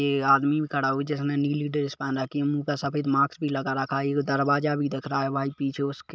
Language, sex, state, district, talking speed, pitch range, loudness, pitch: Hindi, male, Chhattisgarh, Kabirdham, 275 wpm, 135-145 Hz, -26 LUFS, 140 Hz